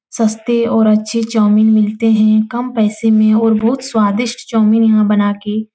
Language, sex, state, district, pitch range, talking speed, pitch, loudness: Hindi, female, Uttar Pradesh, Etah, 215-225 Hz, 175 wpm, 220 Hz, -13 LUFS